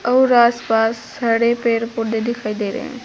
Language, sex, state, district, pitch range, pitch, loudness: Hindi, female, Uttar Pradesh, Saharanpur, 225-245 Hz, 235 Hz, -18 LUFS